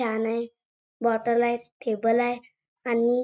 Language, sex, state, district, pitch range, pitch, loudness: Marathi, female, Maharashtra, Chandrapur, 230-240 Hz, 235 Hz, -26 LUFS